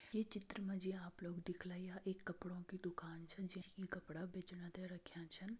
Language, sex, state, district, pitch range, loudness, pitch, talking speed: Hindi, female, Uttarakhand, Tehri Garhwal, 180-190 Hz, -49 LUFS, 185 Hz, 215 wpm